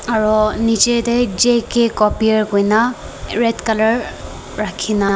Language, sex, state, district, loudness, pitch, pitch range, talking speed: Nagamese, female, Nagaland, Dimapur, -16 LUFS, 220 Hz, 215-235 Hz, 105 wpm